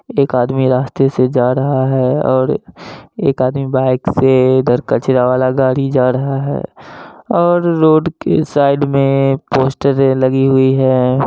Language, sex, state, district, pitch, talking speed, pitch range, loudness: Hindi, male, Bihar, Gaya, 135 Hz, 150 wpm, 130-140 Hz, -13 LUFS